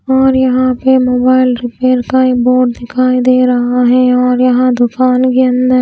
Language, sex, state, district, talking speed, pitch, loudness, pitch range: Hindi, female, Haryana, Rohtak, 175 wpm, 255 Hz, -10 LUFS, 250-255 Hz